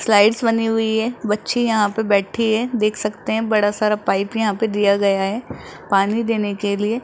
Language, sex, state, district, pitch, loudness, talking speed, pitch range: Hindi, male, Rajasthan, Jaipur, 215 Hz, -19 LUFS, 205 wpm, 205-225 Hz